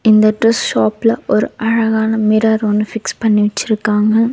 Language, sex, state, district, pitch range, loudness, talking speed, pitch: Tamil, female, Tamil Nadu, Nilgiris, 215-225 Hz, -14 LUFS, 150 wpm, 220 Hz